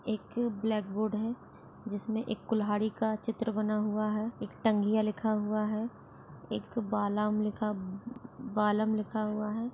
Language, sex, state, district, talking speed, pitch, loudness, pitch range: Hindi, female, Chhattisgarh, Jashpur, 140 wpm, 215 Hz, -32 LUFS, 210-225 Hz